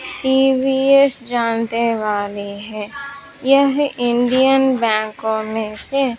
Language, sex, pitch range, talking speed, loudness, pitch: Hindi, female, 220-270 Hz, 85 wpm, -17 LUFS, 245 Hz